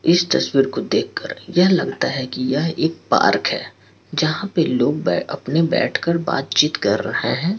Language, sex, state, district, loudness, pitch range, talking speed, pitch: Hindi, male, Bihar, Patna, -19 LUFS, 135-175 Hz, 180 wpm, 160 Hz